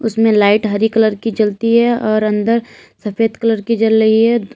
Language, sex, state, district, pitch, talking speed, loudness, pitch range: Hindi, female, Uttar Pradesh, Lalitpur, 220 Hz, 195 wpm, -14 LUFS, 215-230 Hz